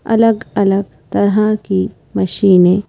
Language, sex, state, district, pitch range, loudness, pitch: Hindi, female, Madhya Pradesh, Bhopal, 145-215 Hz, -14 LUFS, 195 Hz